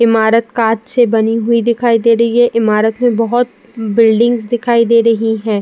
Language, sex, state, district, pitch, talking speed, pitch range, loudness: Hindi, female, Uttar Pradesh, Jalaun, 230 Hz, 180 wpm, 225-235 Hz, -12 LUFS